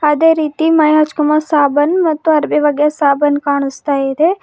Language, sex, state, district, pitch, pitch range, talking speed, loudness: Kannada, female, Karnataka, Bidar, 300 Hz, 290-315 Hz, 150 wpm, -13 LUFS